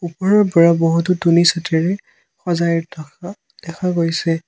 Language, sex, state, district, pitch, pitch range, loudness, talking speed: Assamese, male, Assam, Sonitpur, 170 Hz, 165-180 Hz, -16 LUFS, 105 wpm